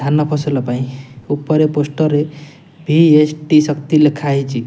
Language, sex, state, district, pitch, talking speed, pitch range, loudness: Odia, male, Odisha, Nuapada, 150 Hz, 115 wpm, 140-155 Hz, -15 LUFS